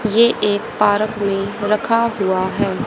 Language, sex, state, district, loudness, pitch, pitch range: Hindi, female, Haryana, Rohtak, -17 LUFS, 205 Hz, 200-215 Hz